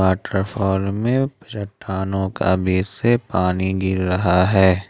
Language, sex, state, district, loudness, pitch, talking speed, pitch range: Hindi, male, Jharkhand, Ranchi, -20 LUFS, 95 Hz, 125 wpm, 95-100 Hz